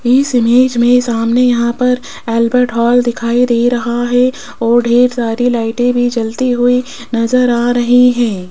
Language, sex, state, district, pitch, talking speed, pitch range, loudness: Hindi, female, Rajasthan, Jaipur, 245 Hz, 160 wpm, 235-250 Hz, -12 LUFS